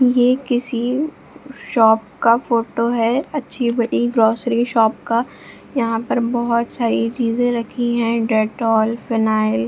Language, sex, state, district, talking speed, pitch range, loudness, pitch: Hindi, female, Bihar, Jamui, 130 wpm, 225-245 Hz, -18 LUFS, 235 Hz